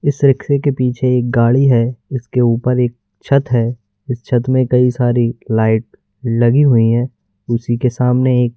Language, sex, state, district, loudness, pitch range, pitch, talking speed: Hindi, male, Madhya Pradesh, Bhopal, -15 LUFS, 120-130 Hz, 125 Hz, 175 wpm